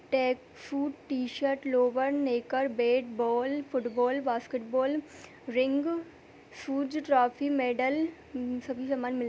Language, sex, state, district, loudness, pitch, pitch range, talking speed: Hindi, female, Chhattisgarh, Kabirdham, -30 LUFS, 260 Hz, 250-280 Hz, 110 wpm